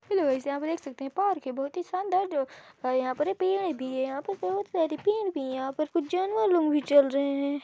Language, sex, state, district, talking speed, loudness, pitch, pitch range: Hindi, female, Chhattisgarh, Balrampur, 265 wpm, -28 LUFS, 305 Hz, 275-370 Hz